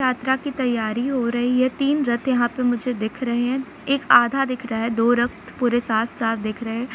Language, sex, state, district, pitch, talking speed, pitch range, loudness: Hindi, female, Jharkhand, Sahebganj, 245 Hz, 235 wpm, 235-260 Hz, -21 LUFS